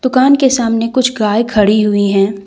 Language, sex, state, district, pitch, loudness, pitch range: Hindi, female, Jharkhand, Deoghar, 225 Hz, -12 LUFS, 210-255 Hz